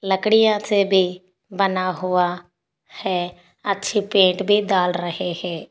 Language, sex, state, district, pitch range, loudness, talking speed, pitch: Hindi, female, Maharashtra, Sindhudurg, 180-200 Hz, -20 LUFS, 125 wpm, 185 Hz